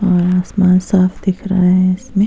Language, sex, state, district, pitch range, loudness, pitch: Hindi, female, Goa, North and South Goa, 180-195 Hz, -14 LUFS, 185 Hz